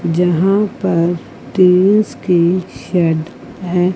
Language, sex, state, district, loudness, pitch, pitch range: Hindi, female, Chandigarh, Chandigarh, -15 LUFS, 180 Hz, 175-190 Hz